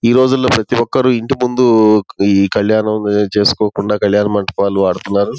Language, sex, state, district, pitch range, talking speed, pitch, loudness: Telugu, male, Andhra Pradesh, Guntur, 100-120 Hz, 135 wpm, 105 Hz, -13 LUFS